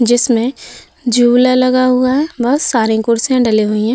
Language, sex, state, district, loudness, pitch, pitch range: Hindi, female, Uttar Pradesh, Budaun, -13 LUFS, 245 Hz, 230-255 Hz